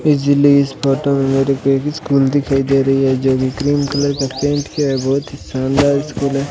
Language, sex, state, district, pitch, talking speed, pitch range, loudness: Hindi, male, Rajasthan, Bikaner, 140 Hz, 220 wpm, 135-145 Hz, -16 LUFS